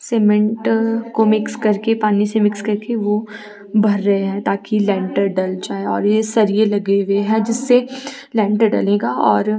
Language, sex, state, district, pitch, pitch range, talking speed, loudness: Hindi, female, Himachal Pradesh, Shimla, 215 Hz, 205-225 Hz, 165 wpm, -17 LUFS